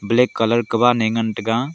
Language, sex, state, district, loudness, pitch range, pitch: Wancho, male, Arunachal Pradesh, Longding, -18 LUFS, 115-120 Hz, 115 Hz